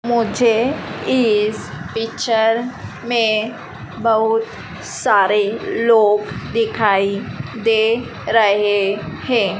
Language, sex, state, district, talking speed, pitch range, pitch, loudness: Hindi, female, Madhya Pradesh, Dhar, 70 wpm, 210-230 Hz, 225 Hz, -17 LUFS